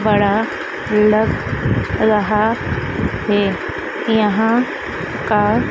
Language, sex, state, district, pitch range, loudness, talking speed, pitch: Hindi, female, Madhya Pradesh, Dhar, 130-225 Hz, -17 LUFS, 65 wpm, 210 Hz